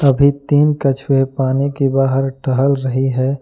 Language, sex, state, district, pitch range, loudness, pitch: Hindi, male, Jharkhand, Ranchi, 135-140 Hz, -16 LUFS, 135 Hz